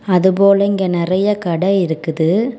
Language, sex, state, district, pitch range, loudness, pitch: Tamil, female, Tamil Nadu, Kanyakumari, 170-200 Hz, -15 LUFS, 190 Hz